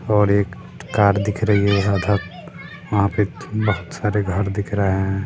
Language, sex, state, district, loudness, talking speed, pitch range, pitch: Hindi, male, Bihar, Sitamarhi, -20 LUFS, 170 wpm, 100-105 Hz, 100 Hz